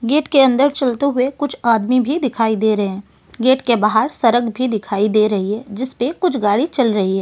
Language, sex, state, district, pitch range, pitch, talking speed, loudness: Hindi, female, Delhi, New Delhi, 215-265 Hz, 240 Hz, 225 wpm, -17 LUFS